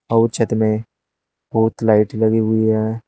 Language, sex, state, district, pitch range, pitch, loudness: Hindi, male, Uttar Pradesh, Shamli, 110-115 Hz, 110 Hz, -17 LUFS